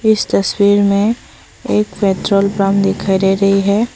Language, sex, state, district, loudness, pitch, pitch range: Hindi, female, Assam, Sonitpur, -14 LUFS, 200 Hz, 195-210 Hz